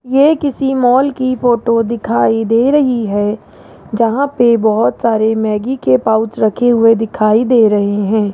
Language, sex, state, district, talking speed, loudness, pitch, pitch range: Hindi, male, Rajasthan, Jaipur, 160 wpm, -13 LUFS, 230 Hz, 215-255 Hz